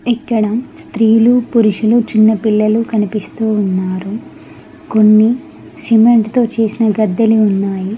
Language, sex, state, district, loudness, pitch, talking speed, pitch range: Telugu, female, Telangana, Mahabubabad, -13 LUFS, 220 Hz, 90 wpm, 215-230 Hz